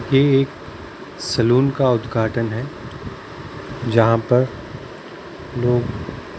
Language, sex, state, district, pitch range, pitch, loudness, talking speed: Hindi, male, Maharashtra, Mumbai Suburban, 115-130 Hz, 120 Hz, -19 LUFS, 95 wpm